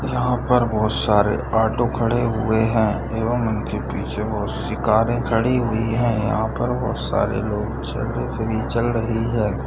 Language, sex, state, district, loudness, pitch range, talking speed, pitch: Hindi, male, Bihar, Madhepura, -21 LUFS, 110-120 Hz, 155 wpm, 115 Hz